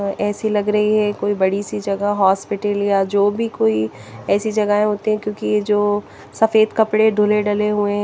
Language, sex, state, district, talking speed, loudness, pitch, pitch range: Hindi, female, Chandigarh, Chandigarh, 185 wpm, -18 LUFS, 205 Hz, 200-210 Hz